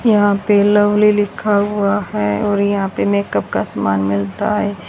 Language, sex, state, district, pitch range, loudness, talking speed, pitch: Hindi, female, Haryana, Rohtak, 195-210 Hz, -16 LUFS, 170 wpm, 205 Hz